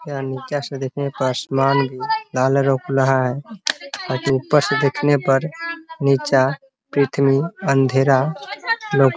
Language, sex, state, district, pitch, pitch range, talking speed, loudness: Hindi, male, Bihar, Muzaffarpur, 140 Hz, 135-160 Hz, 145 wpm, -19 LUFS